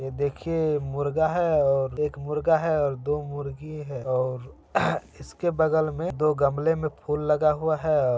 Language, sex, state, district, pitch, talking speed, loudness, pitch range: Hindi, male, Bihar, Saran, 150 Hz, 175 wpm, -25 LUFS, 140-160 Hz